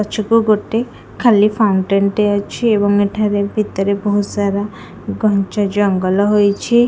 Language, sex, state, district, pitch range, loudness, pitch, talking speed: Odia, female, Odisha, Khordha, 200-215 Hz, -15 LUFS, 205 Hz, 130 wpm